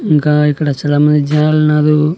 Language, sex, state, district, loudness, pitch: Telugu, male, Andhra Pradesh, Annamaya, -12 LUFS, 150 Hz